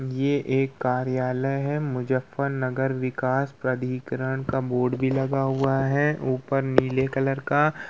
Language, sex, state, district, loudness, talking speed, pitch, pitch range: Hindi, male, Uttar Pradesh, Muzaffarnagar, -25 LUFS, 130 wpm, 135 Hz, 130-135 Hz